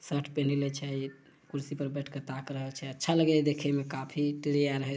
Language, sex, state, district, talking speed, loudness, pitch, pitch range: Maithili, male, Bihar, Samastipur, 205 wpm, -32 LUFS, 140 Hz, 135-145 Hz